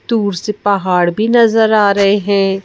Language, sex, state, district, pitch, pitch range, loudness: Hindi, female, Madhya Pradesh, Bhopal, 205 Hz, 195-220 Hz, -13 LUFS